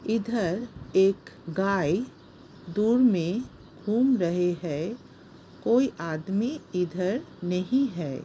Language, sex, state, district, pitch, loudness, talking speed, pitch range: Hindi, female, Uttar Pradesh, Hamirpur, 195 Hz, -27 LUFS, 95 wpm, 180-235 Hz